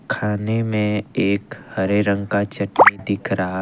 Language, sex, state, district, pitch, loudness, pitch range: Hindi, male, Assam, Kamrup Metropolitan, 100 Hz, -19 LUFS, 100-105 Hz